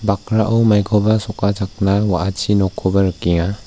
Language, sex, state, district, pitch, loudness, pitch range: Garo, male, Meghalaya, West Garo Hills, 100 Hz, -17 LUFS, 95-105 Hz